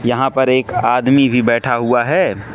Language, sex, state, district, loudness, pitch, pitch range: Hindi, male, Manipur, Imphal West, -14 LUFS, 125 Hz, 120-135 Hz